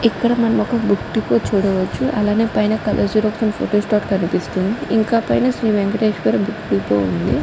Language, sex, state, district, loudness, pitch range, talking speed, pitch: Telugu, female, Andhra Pradesh, Guntur, -18 LUFS, 195-225 Hz, 170 wpm, 210 Hz